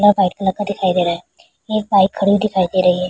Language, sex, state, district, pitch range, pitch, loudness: Hindi, female, Bihar, Kishanganj, 180-205 Hz, 195 Hz, -17 LUFS